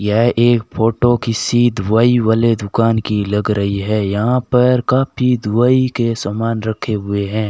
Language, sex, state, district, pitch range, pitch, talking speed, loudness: Hindi, male, Rajasthan, Bikaner, 105-120 Hz, 115 Hz, 160 wpm, -15 LUFS